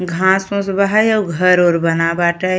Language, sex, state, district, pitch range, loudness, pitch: Bhojpuri, female, Uttar Pradesh, Ghazipur, 175-200 Hz, -14 LUFS, 185 Hz